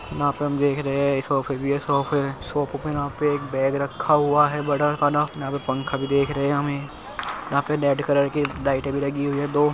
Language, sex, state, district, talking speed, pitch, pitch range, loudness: Hindi, male, Uttar Pradesh, Muzaffarnagar, 245 wpm, 140 Hz, 140-145 Hz, -23 LUFS